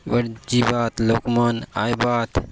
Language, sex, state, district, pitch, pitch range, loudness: Halbi, male, Chhattisgarh, Bastar, 120 Hz, 115-120 Hz, -21 LUFS